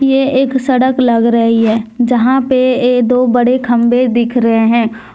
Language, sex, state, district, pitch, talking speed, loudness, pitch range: Hindi, female, Jharkhand, Deoghar, 245 Hz, 175 wpm, -11 LUFS, 235-255 Hz